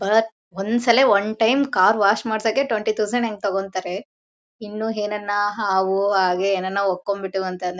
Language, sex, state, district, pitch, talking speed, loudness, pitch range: Kannada, female, Karnataka, Bellary, 205 Hz, 160 wpm, -21 LUFS, 195-220 Hz